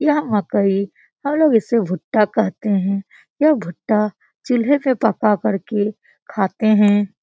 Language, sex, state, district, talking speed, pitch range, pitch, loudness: Hindi, female, Bihar, Lakhisarai, 135 wpm, 200-245 Hz, 215 Hz, -18 LUFS